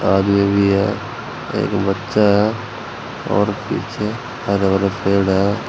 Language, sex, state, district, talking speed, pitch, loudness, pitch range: Hindi, male, Uttar Pradesh, Saharanpur, 125 wpm, 100 Hz, -18 LUFS, 100-110 Hz